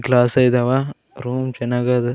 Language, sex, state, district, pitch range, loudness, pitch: Kannada, male, Karnataka, Raichur, 125-130 Hz, -18 LUFS, 125 Hz